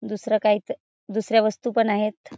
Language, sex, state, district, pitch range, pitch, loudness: Marathi, female, Maharashtra, Chandrapur, 210-225 Hz, 220 Hz, -23 LUFS